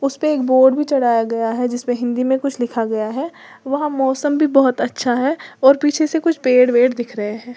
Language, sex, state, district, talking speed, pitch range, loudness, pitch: Hindi, female, Uttar Pradesh, Lalitpur, 235 wpm, 245-285 Hz, -17 LUFS, 260 Hz